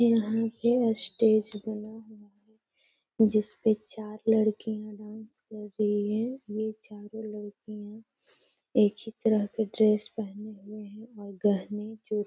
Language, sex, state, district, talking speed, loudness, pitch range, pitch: Hindi, female, Bihar, Gaya, 140 wpm, -28 LUFS, 210-220 Hz, 215 Hz